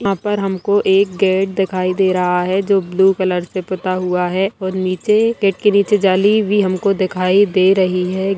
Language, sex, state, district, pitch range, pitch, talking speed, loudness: Hindi, male, Bihar, Saran, 185-200 Hz, 190 Hz, 210 wpm, -16 LUFS